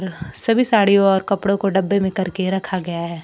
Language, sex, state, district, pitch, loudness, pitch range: Hindi, female, Bihar, Kaimur, 190 Hz, -18 LUFS, 185-200 Hz